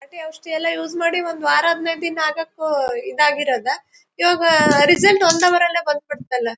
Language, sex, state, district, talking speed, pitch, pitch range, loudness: Kannada, female, Karnataka, Bellary, 175 wpm, 325 Hz, 295-335 Hz, -17 LUFS